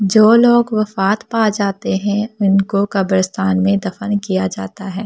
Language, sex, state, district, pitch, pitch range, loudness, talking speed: Hindi, female, Delhi, New Delhi, 200 Hz, 195-215 Hz, -16 LUFS, 180 wpm